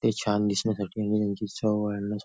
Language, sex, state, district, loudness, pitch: Marathi, male, Maharashtra, Nagpur, -28 LUFS, 105 Hz